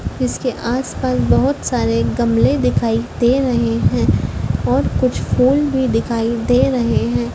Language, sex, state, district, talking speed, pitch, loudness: Hindi, female, Madhya Pradesh, Dhar, 140 wpm, 230 Hz, -17 LUFS